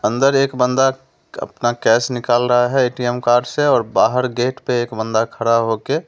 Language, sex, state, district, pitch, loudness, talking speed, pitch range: Hindi, male, Delhi, New Delhi, 125 Hz, -17 LUFS, 190 wpm, 120-130 Hz